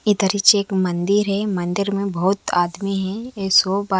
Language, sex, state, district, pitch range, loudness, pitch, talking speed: Hindi, female, Haryana, Charkhi Dadri, 190-200 Hz, -19 LUFS, 195 Hz, 150 wpm